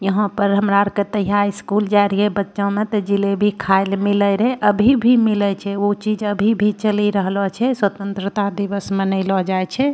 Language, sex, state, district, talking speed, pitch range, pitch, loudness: Angika, female, Bihar, Bhagalpur, 200 wpm, 200-210 Hz, 205 Hz, -18 LUFS